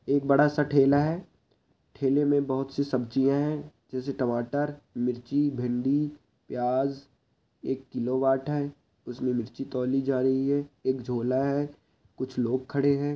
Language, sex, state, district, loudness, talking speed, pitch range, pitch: Hindi, male, Chhattisgarh, Balrampur, -28 LUFS, 145 wpm, 125-145 Hz, 135 Hz